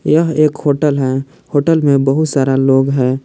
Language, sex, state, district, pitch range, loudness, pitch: Hindi, male, Jharkhand, Palamu, 135-155 Hz, -14 LUFS, 140 Hz